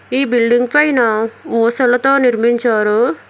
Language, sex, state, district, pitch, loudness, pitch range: Telugu, female, Telangana, Hyderabad, 240 Hz, -14 LUFS, 230-260 Hz